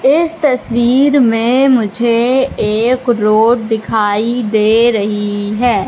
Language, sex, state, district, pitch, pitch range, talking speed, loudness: Hindi, female, Madhya Pradesh, Katni, 235 Hz, 215-255 Hz, 100 wpm, -12 LUFS